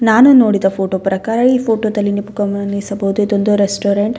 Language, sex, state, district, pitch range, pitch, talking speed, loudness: Kannada, female, Karnataka, Bellary, 200-220 Hz, 205 Hz, 160 wpm, -14 LUFS